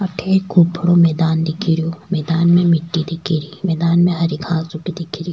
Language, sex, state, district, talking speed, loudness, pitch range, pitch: Rajasthani, female, Rajasthan, Churu, 215 wpm, -17 LUFS, 165-175 Hz, 170 Hz